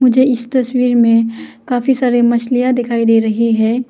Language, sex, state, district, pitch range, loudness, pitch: Hindi, female, Arunachal Pradesh, Lower Dibang Valley, 230-250 Hz, -14 LUFS, 245 Hz